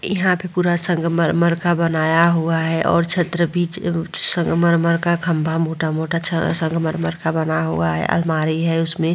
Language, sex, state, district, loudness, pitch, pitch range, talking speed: Hindi, female, Bihar, Vaishali, -19 LUFS, 165 Hz, 160-170 Hz, 150 wpm